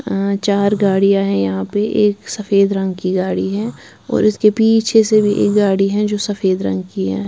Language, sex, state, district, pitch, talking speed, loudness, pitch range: Hindi, female, Bihar, Patna, 200 Hz, 205 wpm, -16 LUFS, 190-210 Hz